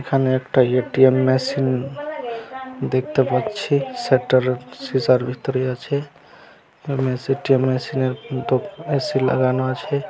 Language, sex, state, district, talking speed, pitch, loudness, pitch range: Bengali, male, West Bengal, Malda, 105 wpm, 130 Hz, -20 LUFS, 130-140 Hz